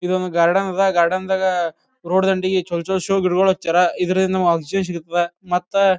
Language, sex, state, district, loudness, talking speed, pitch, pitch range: Kannada, male, Karnataka, Bijapur, -19 LUFS, 160 wpm, 185 Hz, 175-190 Hz